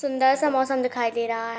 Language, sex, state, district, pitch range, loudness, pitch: Hindi, female, Jharkhand, Sahebganj, 235-265 Hz, -23 LUFS, 260 Hz